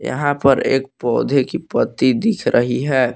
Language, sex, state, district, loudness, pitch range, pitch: Hindi, male, Jharkhand, Palamu, -17 LUFS, 130-145 Hz, 135 Hz